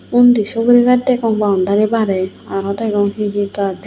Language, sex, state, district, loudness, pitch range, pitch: Chakma, female, Tripura, Unakoti, -15 LUFS, 200-230 Hz, 210 Hz